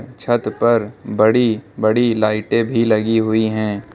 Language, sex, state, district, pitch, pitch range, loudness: Hindi, male, Uttar Pradesh, Lucknow, 110 Hz, 110-115 Hz, -17 LUFS